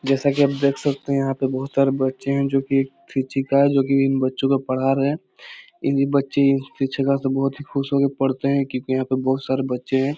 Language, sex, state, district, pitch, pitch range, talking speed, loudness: Hindi, male, Bihar, Jahanabad, 135 Hz, 135-140 Hz, 240 wpm, -21 LUFS